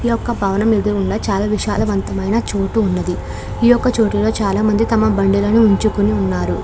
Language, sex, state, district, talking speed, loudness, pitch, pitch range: Telugu, female, Andhra Pradesh, Krishna, 135 wpm, -16 LUFS, 205 Hz, 195-220 Hz